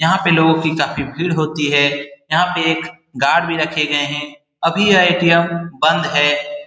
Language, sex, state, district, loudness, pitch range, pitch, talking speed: Hindi, male, Bihar, Saran, -15 LUFS, 145-170 Hz, 160 Hz, 190 wpm